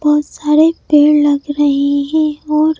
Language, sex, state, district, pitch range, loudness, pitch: Hindi, female, Madhya Pradesh, Bhopal, 290-305 Hz, -13 LUFS, 295 Hz